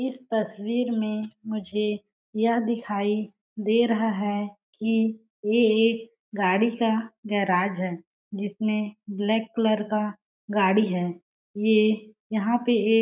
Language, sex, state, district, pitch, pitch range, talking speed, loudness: Hindi, female, Chhattisgarh, Balrampur, 215 Hz, 205-225 Hz, 120 wpm, -25 LUFS